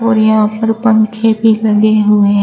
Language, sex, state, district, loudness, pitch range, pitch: Hindi, female, Uttar Pradesh, Shamli, -11 LUFS, 215-225 Hz, 220 Hz